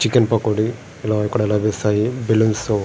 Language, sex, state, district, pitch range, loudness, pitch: Telugu, male, Andhra Pradesh, Srikakulam, 105-115 Hz, -19 LUFS, 110 Hz